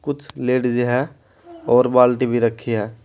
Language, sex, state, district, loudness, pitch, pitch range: Hindi, male, Uttar Pradesh, Saharanpur, -18 LUFS, 125 Hz, 120-130 Hz